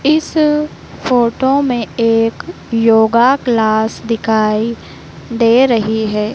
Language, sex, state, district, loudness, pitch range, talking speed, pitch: Hindi, female, Madhya Pradesh, Dhar, -13 LUFS, 220-260 Hz, 95 wpm, 230 Hz